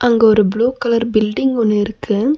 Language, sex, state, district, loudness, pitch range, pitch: Tamil, female, Tamil Nadu, Nilgiris, -15 LUFS, 215-240 Hz, 230 Hz